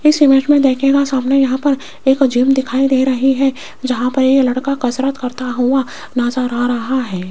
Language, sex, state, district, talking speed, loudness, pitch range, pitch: Hindi, female, Rajasthan, Jaipur, 195 wpm, -15 LUFS, 250-275 Hz, 265 Hz